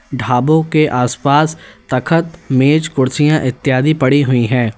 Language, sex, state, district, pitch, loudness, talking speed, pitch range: Hindi, male, Uttar Pradesh, Lalitpur, 140 Hz, -14 LUFS, 140 wpm, 130-155 Hz